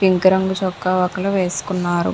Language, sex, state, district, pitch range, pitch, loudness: Telugu, female, Andhra Pradesh, Visakhapatnam, 180-190 Hz, 185 Hz, -19 LUFS